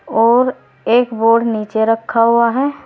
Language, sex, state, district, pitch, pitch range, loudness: Hindi, female, Uttar Pradesh, Saharanpur, 230 Hz, 225-245 Hz, -14 LUFS